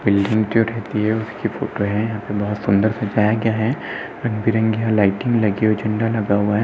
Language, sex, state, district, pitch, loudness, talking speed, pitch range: Hindi, male, Uttar Pradesh, Etah, 110 Hz, -19 LUFS, 225 wpm, 105-110 Hz